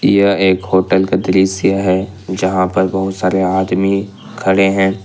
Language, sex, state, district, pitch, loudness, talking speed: Hindi, male, Jharkhand, Ranchi, 95 Hz, -14 LUFS, 155 wpm